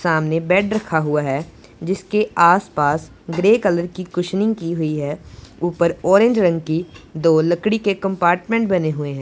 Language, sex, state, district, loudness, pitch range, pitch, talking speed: Hindi, male, Punjab, Pathankot, -18 LUFS, 160-195 Hz, 175 Hz, 170 wpm